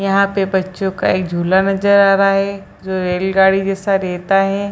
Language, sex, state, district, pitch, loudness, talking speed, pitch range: Hindi, female, Bihar, Purnia, 195 Hz, -15 LUFS, 190 wpm, 190-195 Hz